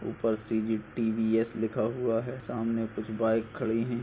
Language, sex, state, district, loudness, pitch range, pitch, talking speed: Hindi, male, Chhattisgarh, Kabirdham, -30 LUFS, 110-115 Hz, 115 Hz, 195 wpm